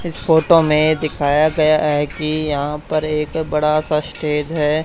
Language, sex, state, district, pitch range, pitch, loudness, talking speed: Hindi, male, Haryana, Charkhi Dadri, 150-155 Hz, 155 Hz, -17 LUFS, 175 wpm